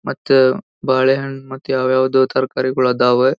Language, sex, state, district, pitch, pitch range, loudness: Kannada, male, Karnataka, Belgaum, 130 Hz, 130-135 Hz, -16 LUFS